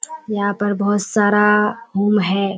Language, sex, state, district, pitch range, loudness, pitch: Hindi, female, Bihar, Kishanganj, 200-210 Hz, -17 LUFS, 205 Hz